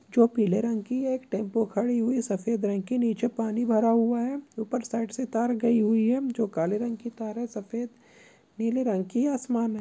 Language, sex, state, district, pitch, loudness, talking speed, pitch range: Hindi, female, Bihar, Samastipur, 230 Hz, -27 LUFS, 220 wpm, 220-240 Hz